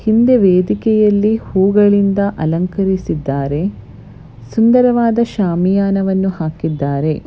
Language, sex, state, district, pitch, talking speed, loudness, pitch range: Kannada, female, Karnataka, Bellary, 190 Hz, 60 wpm, -14 LUFS, 155-210 Hz